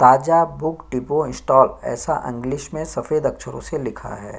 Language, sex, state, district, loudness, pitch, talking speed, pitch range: Hindi, male, Chhattisgarh, Sukma, -20 LUFS, 155 Hz, 175 wpm, 125-165 Hz